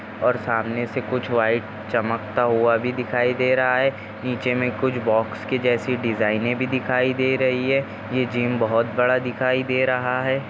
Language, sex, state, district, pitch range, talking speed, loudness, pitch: Hindi, male, Maharashtra, Nagpur, 115-130 Hz, 185 wpm, -22 LUFS, 125 Hz